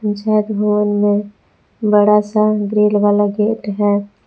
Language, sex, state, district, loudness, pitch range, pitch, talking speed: Hindi, female, Jharkhand, Palamu, -15 LUFS, 205-210 Hz, 210 Hz, 125 wpm